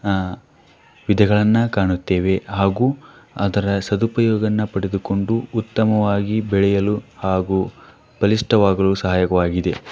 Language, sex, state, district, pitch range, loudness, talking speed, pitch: Kannada, male, Karnataka, Dharwad, 95-110 Hz, -19 LUFS, 75 wpm, 100 Hz